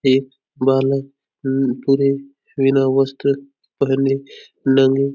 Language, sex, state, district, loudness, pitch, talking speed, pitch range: Hindi, male, Uttar Pradesh, Etah, -18 LUFS, 135 Hz, 105 wpm, 135-140 Hz